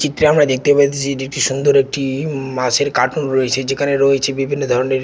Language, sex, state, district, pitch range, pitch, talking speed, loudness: Bengali, male, West Bengal, Jalpaiguri, 135-140 Hz, 135 Hz, 180 wpm, -16 LUFS